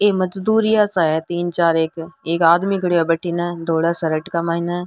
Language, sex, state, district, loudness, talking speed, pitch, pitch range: Rajasthani, female, Rajasthan, Nagaur, -18 LUFS, 195 wpm, 170 Hz, 165-185 Hz